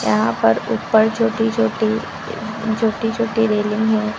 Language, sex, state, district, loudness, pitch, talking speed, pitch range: Hindi, female, Uttar Pradesh, Lucknow, -19 LUFS, 220 Hz, 130 wpm, 215-225 Hz